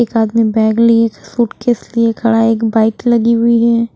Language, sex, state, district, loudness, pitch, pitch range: Hindi, female, Haryana, Rohtak, -13 LUFS, 230 Hz, 225-235 Hz